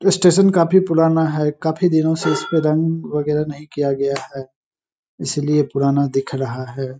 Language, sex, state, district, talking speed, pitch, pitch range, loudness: Hindi, male, Bihar, Saharsa, 165 wpm, 150 Hz, 140-165 Hz, -18 LUFS